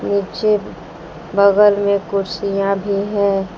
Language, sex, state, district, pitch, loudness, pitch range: Hindi, female, Jharkhand, Palamu, 200 Hz, -17 LUFS, 195-200 Hz